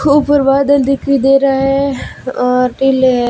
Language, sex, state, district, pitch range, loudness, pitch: Hindi, female, Rajasthan, Bikaner, 260-280 Hz, -12 LUFS, 270 Hz